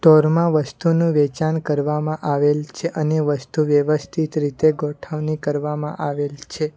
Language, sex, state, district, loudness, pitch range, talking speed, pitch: Gujarati, male, Gujarat, Valsad, -20 LUFS, 145-155 Hz, 115 wpm, 150 Hz